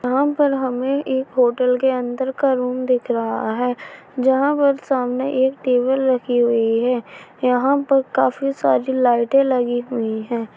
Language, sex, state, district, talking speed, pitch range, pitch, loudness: Hindi, female, Chhattisgarh, Raigarh, 160 wpm, 245-270 Hz, 255 Hz, -19 LUFS